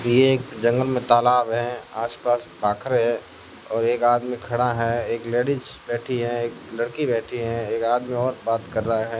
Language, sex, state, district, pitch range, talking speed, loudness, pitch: Hindi, male, Rajasthan, Jaisalmer, 115-125 Hz, 190 wpm, -23 LUFS, 120 Hz